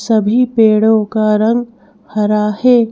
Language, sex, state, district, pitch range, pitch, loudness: Hindi, female, Madhya Pradesh, Bhopal, 210-230 Hz, 220 Hz, -13 LUFS